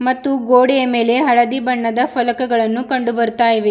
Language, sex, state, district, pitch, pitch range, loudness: Kannada, female, Karnataka, Bidar, 245 Hz, 235-255 Hz, -15 LUFS